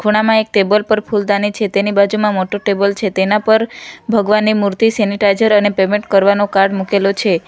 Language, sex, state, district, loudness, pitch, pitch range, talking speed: Gujarati, female, Gujarat, Valsad, -14 LUFS, 205 Hz, 200-215 Hz, 175 wpm